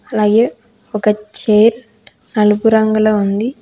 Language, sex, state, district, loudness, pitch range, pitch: Telugu, female, Telangana, Hyderabad, -14 LUFS, 210-225 Hz, 215 Hz